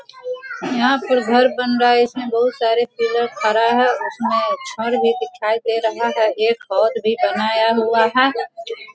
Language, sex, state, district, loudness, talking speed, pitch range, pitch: Hindi, female, Bihar, Sitamarhi, -17 LUFS, 185 wpm, 225-260 Hz, 240 Hz